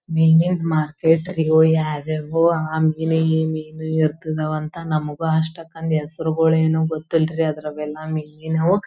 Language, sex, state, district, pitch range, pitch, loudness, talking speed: Kannada, female, Karnataka, Belgaum, 155-160 Hz, 160 Hz, -20 LUFS, 115 wpm